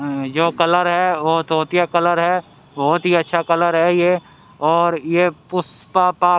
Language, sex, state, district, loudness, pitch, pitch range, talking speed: Hindi, male, Haryana, Rohtak, -17 LUFS, 170 Hz, 160-175 Hz, 170 wpm